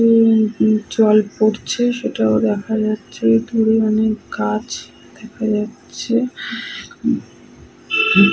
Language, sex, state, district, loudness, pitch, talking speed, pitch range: Bengali, female, West Bengal, Purulia, -17 LUFS, 215 Hz, 115 wpm, 195-225 Hz